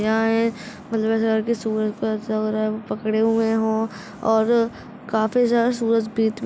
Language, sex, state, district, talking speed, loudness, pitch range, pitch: Hindi, female, Uttar Pradesh, Gorakhpur, 65 wpm, -22 LUFS, 215-230 Hz, 220 Hz